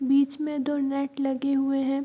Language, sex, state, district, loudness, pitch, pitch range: Hindi, female, Bihar, Sitamarhi, -26 LUFS, 275 Hz, 275-280 Hz